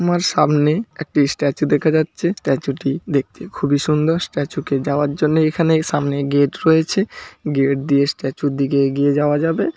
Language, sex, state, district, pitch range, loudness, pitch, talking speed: Bengali, male, West Bengal, Jhargram, 140-160 Hz, -18 LUFS, 145 Hz, 165 wpm